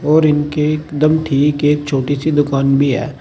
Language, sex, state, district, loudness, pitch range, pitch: Hindi, male, Uttar Pradesh, Saharanpur, -15 LUFS, 140-150 Hz, 145 Hz